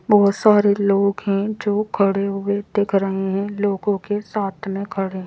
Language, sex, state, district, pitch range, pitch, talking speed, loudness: Hindi, female, Madhya Pradesh, Bhopal, 195-205 Hz, 200 Hz, 180 wpm, -20 LUFS